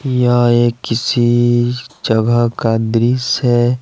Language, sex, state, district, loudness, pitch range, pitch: Hindi, male, Jharkhand, Ranchi, -14 LUFS, 115-125 Hz, 120 Hz